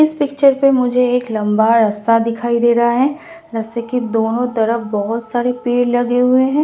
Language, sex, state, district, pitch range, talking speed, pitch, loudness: Hindi, female, Delhi, New Delhi, 230-250 Hz, 190 wpm, 240 Hz, -15 LUFS